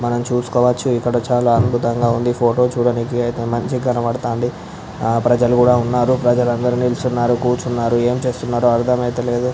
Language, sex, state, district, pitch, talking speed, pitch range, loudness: Telugu, male, Andhra Pradesh, Visakhapatnam, 120 Hz, 150 wpm, 120-125 Hz, -17 LUFS